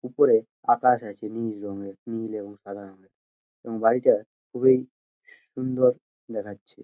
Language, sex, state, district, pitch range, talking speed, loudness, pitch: Bengali, male, West Bengal, Jhargram, 100-125 Hz, 115 wpm, -25 LUFS, 115 Hz